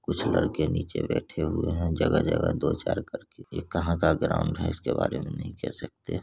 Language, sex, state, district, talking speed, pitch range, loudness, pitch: Hindi, male, Bihar, Saran, 210 wpm, 75-85 Hz, -28 LUFS, 85 Hz